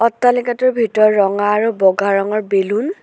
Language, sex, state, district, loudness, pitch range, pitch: Assamese, female, Assam, Sonitpur, -15 LUFS, 200-235 Hz, 215 Hz